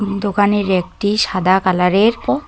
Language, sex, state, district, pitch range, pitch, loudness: Bengali, female, West Bengal, Cooch Behar, 185-205 Hz, 200 Hz, -15 LUFS